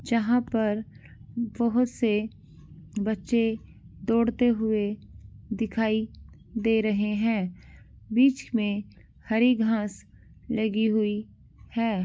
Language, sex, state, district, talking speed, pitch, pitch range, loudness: Angika, male, Bihar, Madhepura, 90 wpm, 220 Hz, 215-235 Hz, -26 LUFS